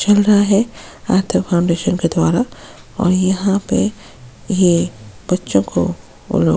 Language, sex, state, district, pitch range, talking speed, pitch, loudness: Hindi, female, Chhattisgarh, Sukma, 125-200 Hz, 130 wpm, 185 Hz, -16 LUFS